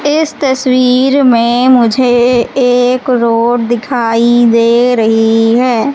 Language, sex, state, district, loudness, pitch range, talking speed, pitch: Hindi, female, Madhya Pradesh, Katni, -10 LUFS, 230-255 Hz, 100 wpm, 245 Hz